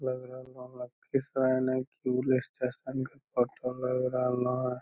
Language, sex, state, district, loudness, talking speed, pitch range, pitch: Magahi, male, Bihar, Lakhisarai, -31 LUFS, 135 wpm, 125-130 Hz, 125 Hz